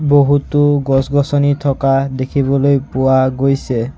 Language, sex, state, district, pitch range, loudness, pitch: Assamese, male, Assam, Sonitpur, 135-145 Hz, -14 LUFS, 140 Hz